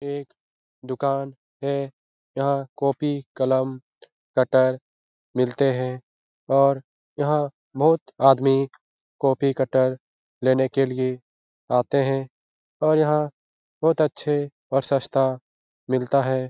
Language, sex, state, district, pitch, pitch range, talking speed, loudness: Hindi, male, Bihar, Jahanabad, 135 Hz, 130-140 Hz, 110 wpm, -23 LUFS